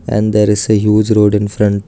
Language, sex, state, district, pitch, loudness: English, male, Karnataka, Bangalore, 105 Hz, -12 LUFS